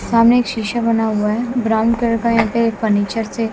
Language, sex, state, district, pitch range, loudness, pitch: Hindi, female, Bihar, West Champaran, 220-235 Hz, -17 LUFS, 230 Hz